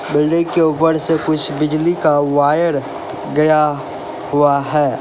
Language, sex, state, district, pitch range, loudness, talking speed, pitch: Hindi, male, Uttar Pradesh, Lalitpur, 145-160 Hz, -15 LUFS, 130 wpm, 150 Hz